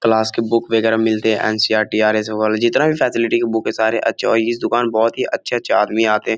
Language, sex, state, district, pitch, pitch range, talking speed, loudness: Hindi, male, Bihar, Jahanabad, 110 Hz, 110-115 Hz, 245 wpm, -17 LUFS